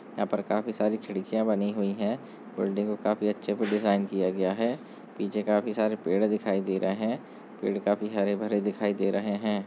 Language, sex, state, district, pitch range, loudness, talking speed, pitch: Hindi, male, Bihar, Bhagalpur, 100-110 Hz, -29 LUFS, 205 wpm, 105 Hz